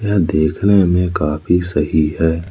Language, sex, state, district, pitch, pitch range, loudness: Hindi, male, Madhya Pradesh, Umaria, 85 Hz, 75-90 Hz, -16 LUFS